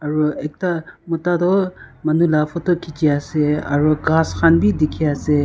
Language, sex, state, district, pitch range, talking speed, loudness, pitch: Nagamese, female, Nagaland, Kohima, 150-170 Hz, 155 wpm, -18 LUFS, 160 Hz